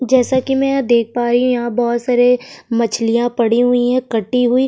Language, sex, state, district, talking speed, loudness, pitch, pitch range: Hindi, female, Uttar Pradesh, Jyotiba Phule Nagar, 205 wpm, -15 LUFS, 245 Hz, 235-255 Hz